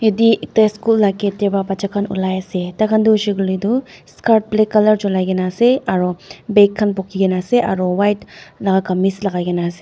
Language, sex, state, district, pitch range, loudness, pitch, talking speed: Nagamese, female, Nagaland, Dimapur, 185-215 Hz, -16 LUFS, 200 Hz, 210 wpm